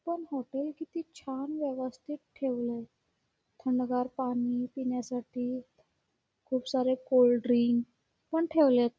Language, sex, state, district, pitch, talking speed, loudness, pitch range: Marathi, female, Karnataka, Belgaum, 255 Hz, 100 wpm, -31 LUFS, 245-285 Hz